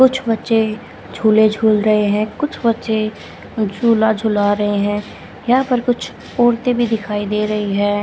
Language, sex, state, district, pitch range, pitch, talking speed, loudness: Hindi, female, Haryana, Rohtak, 210-235 Hz, 220 Hz, 155 wpm, -17 LUFS